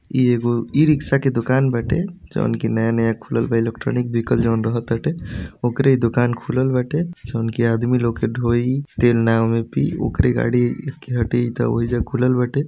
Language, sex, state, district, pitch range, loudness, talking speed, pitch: Bhojpuri, male, Uttar Pradesh, Deoria, 115-130 Hz, -20 LUFS, 165 wpm, 120 Hz